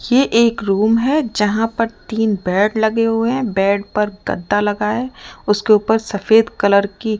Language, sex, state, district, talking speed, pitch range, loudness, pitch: Hindi, female, Rajasthan, Jaipur, 175 wpm, 205-230 Hz, -16 LUFS, 220 Hz